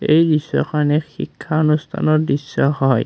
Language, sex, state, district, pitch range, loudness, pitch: Assamese, male, Assam, Kamrup Metropolitan, 145-155 Hz, -18 LUFS, 150 Hz